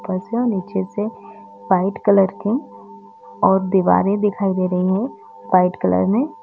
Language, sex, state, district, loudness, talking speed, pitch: Hindi, female, Uttar Pradesh, Etah, -19 LUFS, 160 wpm, 185 Hz